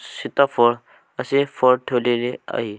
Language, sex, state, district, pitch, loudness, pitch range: Marathi, male, Maharashtra, Sindhudurg, 125 Hz, -20 LUFS, 120-140 Hz